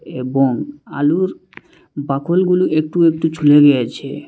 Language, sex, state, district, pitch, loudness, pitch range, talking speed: Bengali, male, Assam, Hailakandi, 155 Hz, -16 LUFS, 140-170 Hz, 110 wpm